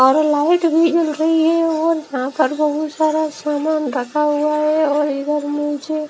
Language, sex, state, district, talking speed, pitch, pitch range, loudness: Hindi, female, Haryana, Rohtak, 175 wpm, 305 Hz, 295-315 Hz, -17 LUFS